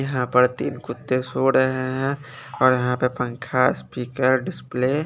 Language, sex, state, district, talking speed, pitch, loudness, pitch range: Hindi, male, Chandigarh, Chandigarh, 165 wpm, 130 Hz, -22 LUFS, 125-135 Hz